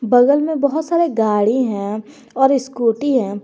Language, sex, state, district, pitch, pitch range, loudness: Hindi, female, Jharkhand, Garhwa, 255 Hz, 225-285 Hz, -17 LUFS